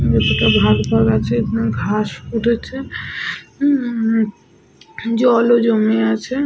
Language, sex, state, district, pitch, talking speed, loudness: Bengali, female, Jharkhand, Sahebganj, 225 Hz, 110 wpm, -17 LUFS